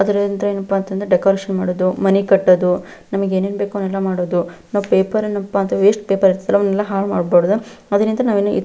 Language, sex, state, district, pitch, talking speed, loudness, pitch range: Kannada, female, Karnataka, Belgaum, 195 Hz, 165 wpm, -17 LUFS, 190-205 Hz